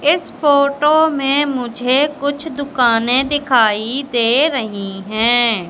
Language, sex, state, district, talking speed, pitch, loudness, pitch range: Hindi, female, Madhya Pradesh, Katni, 105 wpm, 270 Hz, -15 LUFS, 230-290 Hz